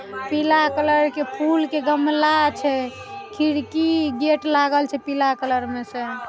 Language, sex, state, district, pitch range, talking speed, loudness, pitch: Maithili, female, Bihar, Saharsa, 275-305 Hz, 145 wpm, -20 LUFS, 295 Hz